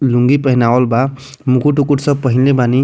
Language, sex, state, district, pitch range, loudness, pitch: Bhojpuri, male, Bihar, Muzaffarpur, 125-140 Hz, -13 LUFS, 130 Hz